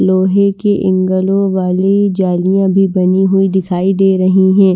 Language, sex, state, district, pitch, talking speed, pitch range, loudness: Hindi, female, Maharashtra, Washim, 190 Hz, 150 wpm, 185-195 Hz, -12 LUFS